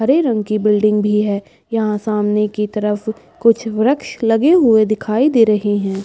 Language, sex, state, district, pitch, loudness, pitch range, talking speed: Hindi, female, Uttar Pradesh, Budaun, 215 Hz, -16 LUFS, 210-225 Hz, 180 wpm